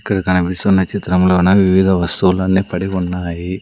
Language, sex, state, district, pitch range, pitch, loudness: Telugu, male, Andhra Pradesh, Sri Satya Sai, 90-95 Hz, 95 Hz, -15 LUFS